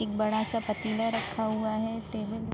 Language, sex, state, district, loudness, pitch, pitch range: Hindi, female, Uttar Pradesh, Budaun, -30 LUFS, 220 Hz, 215-225 Hz